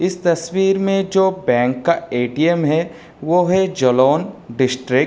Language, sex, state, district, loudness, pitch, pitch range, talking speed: Hindi, male, Uttar Pradesh, Jalaun, -17 LUFS, 170 Hz, 130-185 Hz, 155 wpm